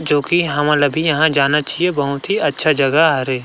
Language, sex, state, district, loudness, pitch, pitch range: Chhattisgarhi, male, Chhattisgarh, Rajnandgaon, -16 LUFS, 150 Hz, 140-160 Hz